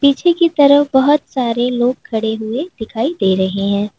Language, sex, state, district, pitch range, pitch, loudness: Hindi, female, Uttar Pradesh, Lalitpur, 220-285 Hz, 245 Hz, -15 LUFS